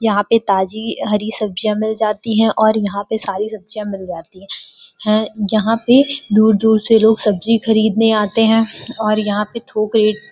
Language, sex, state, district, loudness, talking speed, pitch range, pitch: Hindi, female, Uttar Pradesh, Gorakhpur, -15 LUFS, 190 wpm, 210-225 Hz, 215 Hz